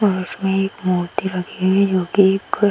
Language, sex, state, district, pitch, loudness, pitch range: Hindi, female, Uttar Pradesh, Hamirpur, 190 Hz, -19 LUFS, 185-195 Hz